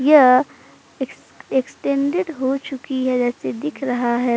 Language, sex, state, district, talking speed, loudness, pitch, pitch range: Hindi, female, Uttar Pradesh, Jalaun, 135 wpm, -20 LUFS, 265 Hz, 255-280 Hz